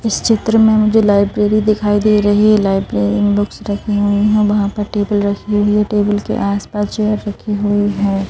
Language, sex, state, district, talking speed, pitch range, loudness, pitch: Hindi, female, Madhya Pradesh, Bhopal, 190 wpm, 205-210 Hz, -14 LUFS, 205 Hz